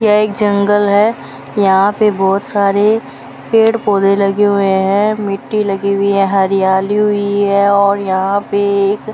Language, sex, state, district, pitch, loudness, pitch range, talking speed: Hindi, female, Rajasthan, Bikaner, 200 Hz, -13 LUFS, 195-210 Hz, 165 wpm